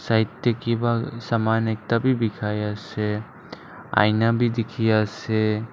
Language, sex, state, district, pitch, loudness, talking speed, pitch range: Nagamese, male, Nagaland, Dimapur, 110 Hz, -23 LUFS, 125 wpm, 110-115 Hz